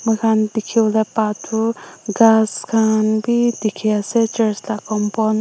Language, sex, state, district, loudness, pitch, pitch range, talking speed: Nagamese, female, Nagaland, Dimapur, -18 LUFS, 220 Hz, 215-225 Hz, 145 wpm